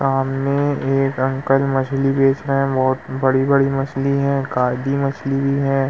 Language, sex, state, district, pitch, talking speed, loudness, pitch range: Hindi, male, Uttar Pradesh, Muzaffarnagar, 135 Hz, 165 wpm, -18 LUFS, 135-140 Hz